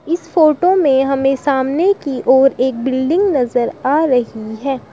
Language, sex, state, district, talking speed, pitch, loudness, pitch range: Hindi, male, Uttar Pradesh, Shamli, 160 wpm, 270 Hz, -15 LUFS, 260-310 Hz